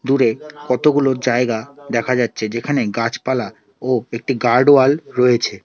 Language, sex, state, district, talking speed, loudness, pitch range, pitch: Bengali, male, West Bengal, Alipurduar, 125 wpm, -17 LUFS, 115-135 Hz, 125 Hz